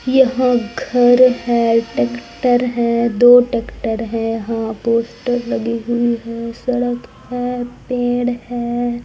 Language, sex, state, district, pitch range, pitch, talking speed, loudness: Hindi, female, Madhya Pradesh, Umaria, 230-245 Hz, 240 Hz, 115 wpm, -17 LUFS